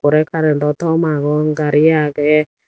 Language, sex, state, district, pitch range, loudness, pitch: Chakma, female, Tripura, Dhalai, 150-155 Hz, -15 LUFS, 150 Hz